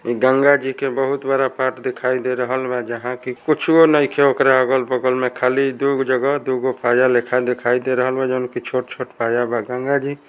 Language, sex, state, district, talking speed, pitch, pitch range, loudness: Bhojpuri, male, Bihar, Saran, 115 wpm, 130 Hz, 125-135 Hz, -18 LUFS